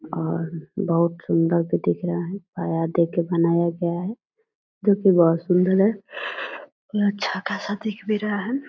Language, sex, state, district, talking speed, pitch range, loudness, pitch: Hindi, female, Bihar, Purnia, 160 wpm, 170-205 Hz, -23 LUFS, 180 Hz